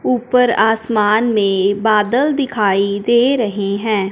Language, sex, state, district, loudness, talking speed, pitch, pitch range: Hindi, male, Punjab, Fazilka, -15 LUFS, 115 wpm, 220 Hz, 200-240 Hz